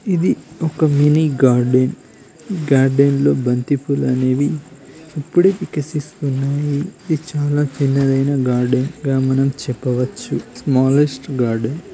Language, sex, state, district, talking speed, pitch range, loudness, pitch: Telugu, male, Andhra Pradesh, Srikakulam, 100 wpm, 130-150 Hz, -17 LUFS, 140 Hz